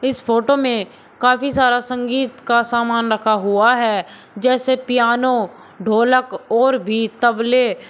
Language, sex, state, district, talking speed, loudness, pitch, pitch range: Hindi, male, Uttar Pradesh, Shamli, 130 wpm, -17 LUFS, 240 Hz, 225-255 Hz